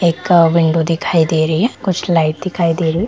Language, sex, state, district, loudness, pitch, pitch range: Hindi, female, Bihar, Gopalganj, -14 LUFS, 165 Hz, 160-180 Hz